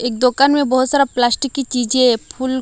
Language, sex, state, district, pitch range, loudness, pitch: Hindi, female, Odisha, Malkangiri, 245-275 Hz, -16 LUFS, 260 Hz